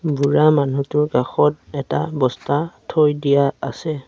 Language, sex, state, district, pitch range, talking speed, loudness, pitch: Assamese, male, Assam, Sonitpur, 140-150 Hz, 115 wpm, -19 LUFS, 145 Hz